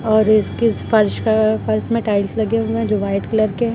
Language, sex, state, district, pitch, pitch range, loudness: Hindi, female, Uttar Pradesh, Lucknow, 215 Hz, 205-225 Hz, -17 LUFS